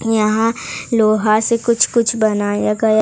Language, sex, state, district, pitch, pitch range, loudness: Hindi, female, Odisha, Sambalpur, 220 Hz, 215-230 Hz, -16 LUFS